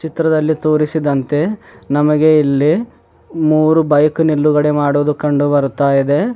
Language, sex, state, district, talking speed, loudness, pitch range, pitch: Kannada, male, Karnataka, Bidar, 105 wpm, -14 LUFS, 145-155 Hz, 150 Hz